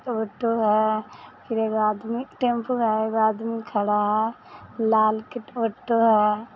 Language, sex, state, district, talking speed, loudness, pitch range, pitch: Hindi, female, Bihar, Samastipur, 135 wpm, -23 LUFS, 215-230 Hz, 220 Hz